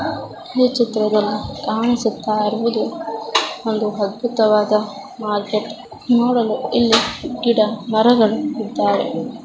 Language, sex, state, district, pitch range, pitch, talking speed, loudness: Kannada, female, Karnataka, Mysore, 215-240 Hz, 220 Hz, 85 wpm, -18 LUFS